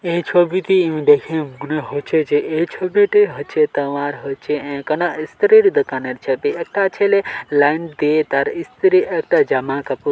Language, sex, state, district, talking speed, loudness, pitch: Bengali, male, West Bengal, Dakshin Dinajpur, 155 wpm, -17 LUFS, 170 Hz